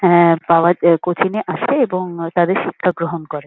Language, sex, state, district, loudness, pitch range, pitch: Bengali, female, West Bengal, Kolkata, -16 LUFS, 170-185 Hz, 175 Hz